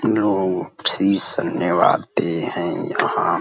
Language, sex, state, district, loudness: Hindi, male, Uttar Pradesh, Deoria, -19 LUFS